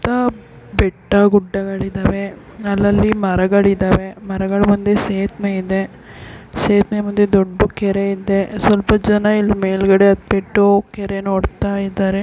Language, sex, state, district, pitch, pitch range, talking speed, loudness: Kannada, female, Karnataka, Belgaum, 200 Hz, 195-205 Hz, 110 wpm, -16 LUFS